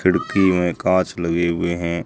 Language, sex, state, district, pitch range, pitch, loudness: Hindi, male, Rajasthan, Jaisalmer, 85-90 Hz, 85 Hz, -19 LUFS